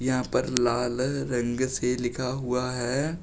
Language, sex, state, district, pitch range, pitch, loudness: Hindi, male, Uttar Pradesh, Shamli, 125-130 Hz, 125 Hz, -27 LUFS